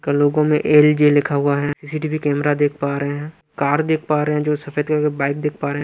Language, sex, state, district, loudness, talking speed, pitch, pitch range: Hindi, male, Punjab, Pathankot, -18 LUFS, 255 wpm, 150 Hz, 145-150 Hz